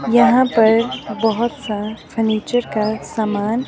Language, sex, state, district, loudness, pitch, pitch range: Hindi, female, Himachal Pradesh, Shimla, -18 LUFS, 225 Hz, 215-240 Hz